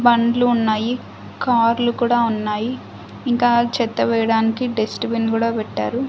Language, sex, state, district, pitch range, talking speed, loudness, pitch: Telugu, female, Andhra Pradesh, Annamaya, 225-240 Hz, 120 wpm, -19 LUFS, 235 Hz